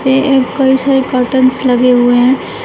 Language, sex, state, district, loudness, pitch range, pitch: Hindi, female, Uttar Pradesh, Shamli, -10 LUFS, 250-265 Hz, 260 Hz